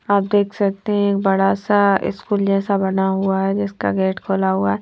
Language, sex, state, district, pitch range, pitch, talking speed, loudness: Hindi, female, Punjab, Fazilka, 190-200 Hz, 195 Hz, 210 wpm, -18 LUFS